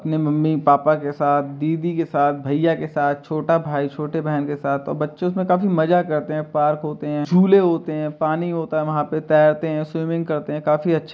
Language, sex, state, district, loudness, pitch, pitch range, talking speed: Hindi, male, Uttar Pradesh, Jalaun, -20 LUFS, 155 Hz, 150-165 Hz, 225 wpm